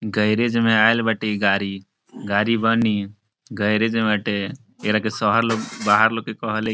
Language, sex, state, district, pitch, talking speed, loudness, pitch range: Bhojpuri, male, Bihar, Saran, 110 Hz, 180 wpm, -20 LUFS, 105-115 Hz